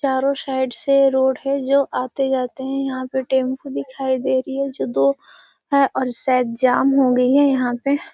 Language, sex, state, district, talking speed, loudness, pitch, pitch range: Hindi, female, Bihar, Gaya, 185 wpm, -19 LUFS, 265 Hz, 255-275 Hz